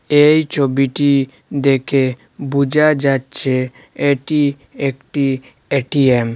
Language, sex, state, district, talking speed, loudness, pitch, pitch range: Bengali, male, Assam, Hailakandi, 85 wpm, -16 LUFS, 140 Hz, 130-145 Hz